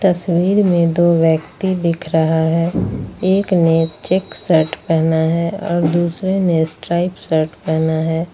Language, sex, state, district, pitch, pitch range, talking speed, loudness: Hindi, female, Jharkhand, Ranchi, 170 Hz, 160-180 Hz, 145 wpm, -16 LUFS